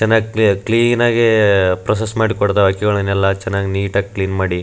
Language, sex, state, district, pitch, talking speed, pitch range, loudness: Kannada, male, Karnataka, Raichur, 100 Hz, 170 wpm, 95-110 Hz, -15 LUFS